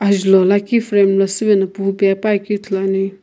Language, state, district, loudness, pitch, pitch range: Sumi, Nagaland, Kohima, -15 LUFS, 195 Hz, 195-205 Hz